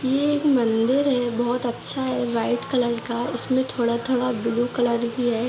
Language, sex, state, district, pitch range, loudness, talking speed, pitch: Hindi, female, Jharkhand, Jamtara, 235-260 Hz, -23 LUFS, 195 wpm, 245 Hz